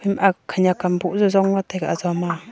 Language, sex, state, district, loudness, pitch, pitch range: Wancho, female, Arunachal Pradesh, Longding, -20 LUFS, 185 Hz, 175-195 Hz